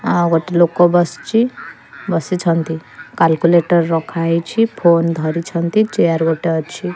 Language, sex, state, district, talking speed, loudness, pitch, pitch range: Odia, female, Odisha, Khordha, 110 wpm, -16 LUFS, 170 Hz, 165-175 Hz